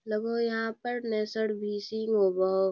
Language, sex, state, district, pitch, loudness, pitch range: Magahi, female, Bihar, Lakhisarai, 220 Hz, -29 LUFS, 205-225 Hz